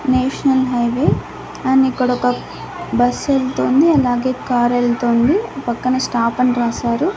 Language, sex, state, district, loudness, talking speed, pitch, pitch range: Telugu, female, Andhra Pradesh, Annamaya, -17 LUFS, 115 wpm, 250 Hz, 240-265 Hz